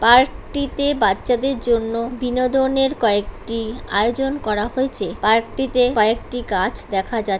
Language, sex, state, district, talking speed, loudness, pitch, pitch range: Bengali, male, West Bengal, Jhargram, 120 wpm, -19 LUFS, 240 Hz, 220-265 Hz